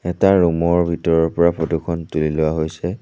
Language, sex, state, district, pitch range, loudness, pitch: Assamese, male, Assam, Sonitpur, 80-85 Hz, -18 LUFS, 85 Hz